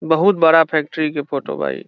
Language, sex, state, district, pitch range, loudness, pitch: Bhojpuri, male, Bihar, Saran, 150-165 Hz, -17 LUFS, 160 Hz